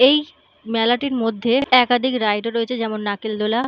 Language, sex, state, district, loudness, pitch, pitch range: Bengali, female, West Bengal, Purulia, -19 LUFS, 235 Hz, 220-250 Hz